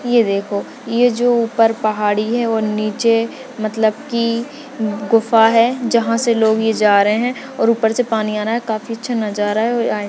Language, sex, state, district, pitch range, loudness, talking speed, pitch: Hindi, female, Maharashtra, Sindhudurg, 215-235 Hz, -17 LUFS, 190 wpm, 225 Hz